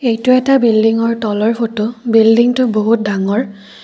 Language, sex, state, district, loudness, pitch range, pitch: Assamese, female, Assam, Kamrup Metropolitan, -13 LUFS, 215-235 Hz, 225 Hz